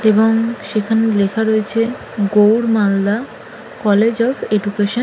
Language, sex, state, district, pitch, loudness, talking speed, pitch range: Bengali, female, West Bengal, Malda, 215 Hz, -16 LUFS, 120 wpm, 205-225 Hz